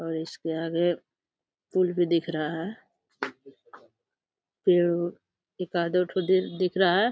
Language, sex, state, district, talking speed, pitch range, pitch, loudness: Hindi, female, Uttar Pradesh, Deoria, 120 wpm, 165-185 Hz, 175 Hz, -27 LUFS